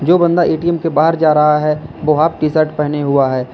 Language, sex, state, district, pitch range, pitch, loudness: Hindi, male, Uttar Pradesh, Lalitpur, 150-165 Hz, 155 Hz, -14 LUFS